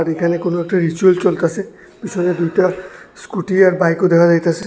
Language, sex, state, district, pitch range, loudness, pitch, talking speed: Bengali, male, Tripura, West Tripura, 170-185 Hz, -15 LUFS, 175 Hz, 155 wpm